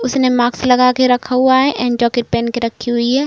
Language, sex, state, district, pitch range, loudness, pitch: Hindi, female, Uttar Pradesh, Budaun, 240-255 Hz, -14 LUFS, 250 Hz